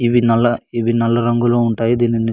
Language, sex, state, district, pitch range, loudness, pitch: Telugu, male, Andhra Pradesh, Anantapur, 115-120 Hz, -16 LUFS, 120 Hz